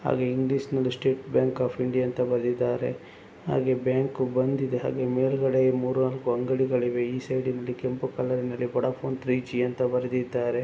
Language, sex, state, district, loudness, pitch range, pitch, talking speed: Kannada, male, Karnataka, Raichur, -27 LUFS, 125-130 Hz, 125 Hz, 145 wpm